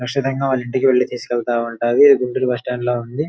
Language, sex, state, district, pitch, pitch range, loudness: Telugu, male, Andhra Pradesh, Guntur, 125 Hz, 120-135 Hz, -18 LUFS